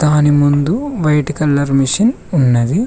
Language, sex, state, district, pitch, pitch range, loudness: Telugu, male, Telangana, Mahabubabad, 150 Hz, 140-175 Hz, -14 LUFS